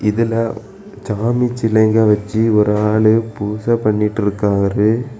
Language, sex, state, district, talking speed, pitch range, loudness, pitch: Tamil, male, Tamil Nadu, Kanyakumari, 105 wpm, 105-115 Hz, -16 LUFS, 110 Hz